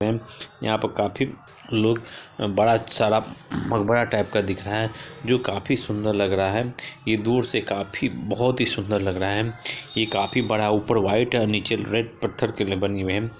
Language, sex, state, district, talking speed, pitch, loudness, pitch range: Hindi, female, Bihar, Saharsa, 180 wpm, 110 Hz, -24 LUFS, 105-120 Hz